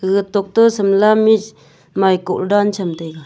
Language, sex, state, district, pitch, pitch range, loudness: Wancho, female, Arunachal Pradesh, Longding, 195 Hz, 180-205 Hz, -15 LUFS